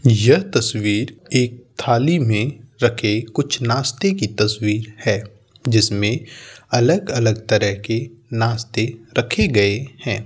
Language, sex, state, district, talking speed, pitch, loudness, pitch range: Bhojpuri, male, Uttar Pradesh, Gorakhpur, 110 wpm, 115 Hz, -19 LUFS, 105-120 Hz